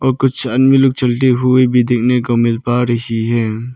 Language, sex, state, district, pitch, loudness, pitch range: Hindi, male, Arunachal Pradesh, Lower Dibang Valley, 125 Hz, -14 LUFS, 120-130 Hz